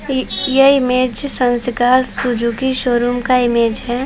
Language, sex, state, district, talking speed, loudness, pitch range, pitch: Hindi, female, Chhattisgarh, Balrampur, 135 wpm, -15 LUFS, 245-260 Hz, 250 Hz